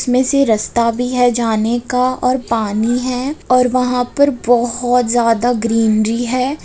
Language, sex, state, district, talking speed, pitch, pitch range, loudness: Hindi, female, Bihar, Begusarai, 155 wpm, 245 Hz, 230-255 Hz, -15 LUFS